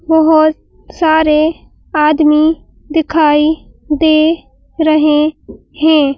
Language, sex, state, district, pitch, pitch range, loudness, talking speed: Hindi, female, Madhya Pradesh, Bhopal, 310 Hz, 300-315 Hz, -12 LUFS, 70 wpm